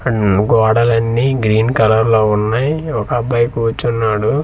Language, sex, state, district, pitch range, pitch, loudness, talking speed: Telugu, male, Andhra Pradesh, Manyam, 110-120 Hz, 115 Hz, -14 LUFS, 120 wpm